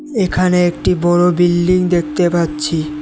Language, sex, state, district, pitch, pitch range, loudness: Bengali, male, Tripura, West Tripura, 175 Hz, 170-180 Hz, -14 LUFS